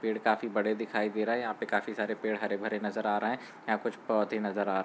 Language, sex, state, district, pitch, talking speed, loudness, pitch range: Hindi, male, Uttar Pradesh, Varanasi, 105 Hz, 295 wpm, -32 LUFS, 105-110 Hz